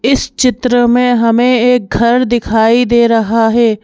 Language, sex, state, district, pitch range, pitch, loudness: Hindi, female, Madhya Pradesh, Bhopal, 230-245 Hz, 240 Hz, -11 LUFS